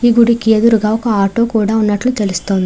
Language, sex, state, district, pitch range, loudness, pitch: Telugu, female, Andhra Pradesh, Krishna, 205-235 Hz, -13 LUFS, 220 Hz